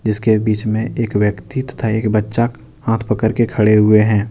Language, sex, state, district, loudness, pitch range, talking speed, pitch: Hindi, male, Jharkhand, Deoghar, -16 LUFS, 105-115 Hz, 195 wpm, 110 Hz